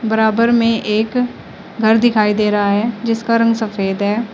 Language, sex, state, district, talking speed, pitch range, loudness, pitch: Hindi, female, Uttar Pradesh, Shamli, 165 wpm, 210-230 Hz, -15 LUFS, 220 Hz